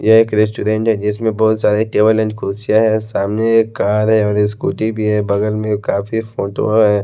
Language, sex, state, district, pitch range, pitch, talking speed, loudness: Hindi, male, Haryana, Rohtak, 105-110 Hz, 110 Hz, 205 wpm, -15 LUFS